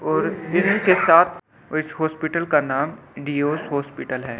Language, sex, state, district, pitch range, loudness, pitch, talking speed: Hindi, male, Delhi, New Delhi, 140-170 Hz, -21 LUFS, 155 Hz, 150 wpm